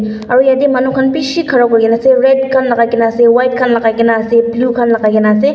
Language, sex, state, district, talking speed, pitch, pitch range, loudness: Nagamese, female, Nagaland, Dimapur, 250 wpm, 240 Hz, 230-265 Hz, -11 LUFS